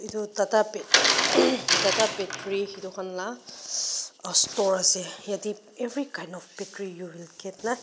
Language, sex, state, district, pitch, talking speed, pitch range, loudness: Nagamese, female, Nagaland, Dimapur, 200 Hz, 130 wpm, 185-215 Hz, -24 LUFS